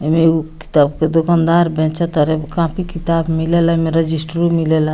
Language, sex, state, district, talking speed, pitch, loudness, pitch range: Bhojpuri, female, Bihar, Muzaffarpur, 160 wpm, 165 Hz, -16 LUFS, 155-170 Hz